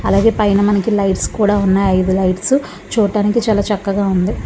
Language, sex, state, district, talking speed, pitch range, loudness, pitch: Telugu, female, Andhra Pradesh, Visakhapatnam, 175 wpm, 195-215 Hz, -15 LUFS, 205 Hz